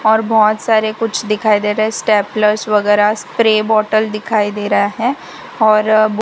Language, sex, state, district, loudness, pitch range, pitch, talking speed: Hindi, female, Gujarat, Valsad, -14 LUFS, 210-220 Hz, 215 Hz, 185 wpm